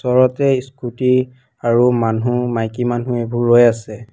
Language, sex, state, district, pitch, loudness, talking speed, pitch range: Assamese, female, Assam, Kamrup Metropolitan, 120 Hz, -16 LUFS, 130 wpm, 120-125 Hz